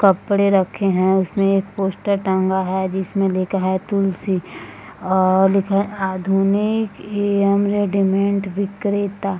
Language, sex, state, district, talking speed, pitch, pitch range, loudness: Hindi, female, Bihar, Madhepura, 120 wpm, 195 Hz, 190-200 Hz, -19 LUFS